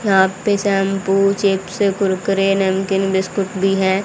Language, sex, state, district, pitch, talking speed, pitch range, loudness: Hindi, female, Haryana, Rohtak, 195 Hz, 135 wpm, 190-195 Hz, -17 LUFS